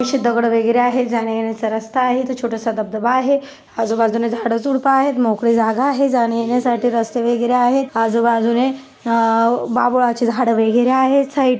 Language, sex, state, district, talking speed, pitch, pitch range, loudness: Marathi, female, Maharashtra, Dhule, 165 wpm, 240 Hz, 230-255 Hz, -17 LUFS